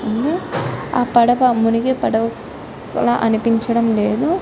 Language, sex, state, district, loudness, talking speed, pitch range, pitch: Telugu, female, Telangana, Karimnagar, -17 LUFS, 95 wpm, 225-250 Hz, 235 Hz